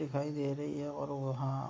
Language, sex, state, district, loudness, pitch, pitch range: Hindi, male, Uttar Pradesh, Jalaun, -37 LUFS, 140 Hz, 135-145 Hz